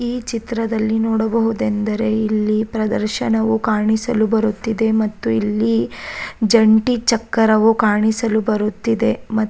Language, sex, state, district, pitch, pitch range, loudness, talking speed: Kannada, female, Karnataka, Raichur, 220 Hz, 215-225 Hz, -18 LUFS, 95 wpm